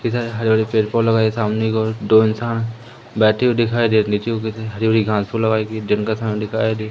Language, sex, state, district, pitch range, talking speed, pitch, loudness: Hindi, male, Madhya Pradesh, Umaria, 110-115 Hz, 215 wpm, 110 Hz, -18 LUFS